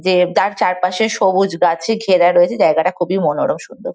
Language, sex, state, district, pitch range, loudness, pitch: Bengali, female, West Bengal, Kolkata, 175-195 Hz, -15 LUFS, 185 Hz